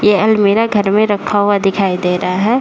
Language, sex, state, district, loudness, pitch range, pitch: Hindi, female, Uttar Pradesh, Deoria, -13 LUFS, 195-210 Hz, 205 Hz